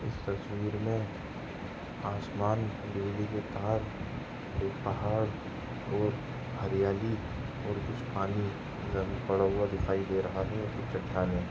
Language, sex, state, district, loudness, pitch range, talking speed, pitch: Hindi, male, Maharashtra, Nagpur, -34 LUFS, 95-110 Hz, 130 wpm, 105 Hz